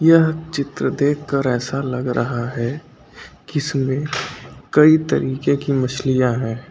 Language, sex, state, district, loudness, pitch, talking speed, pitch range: Hindi, male, Uttar Pradesh, Lucknow, -19 LUFS, 135 Hz, 125 wpm, 125-150 Hz